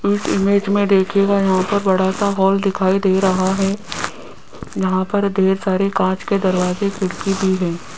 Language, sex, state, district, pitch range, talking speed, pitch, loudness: Hindi, female, Rajasthan, Jaipur, 190-200 Hz, 175 wpm, 195 Hz, -17 LUFS